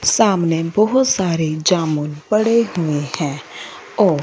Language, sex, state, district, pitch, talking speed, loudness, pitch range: Hindi, female, Punjab, Fazilka, 170 Hz, 125 wpm, -17 LUFS, 155-215 Hz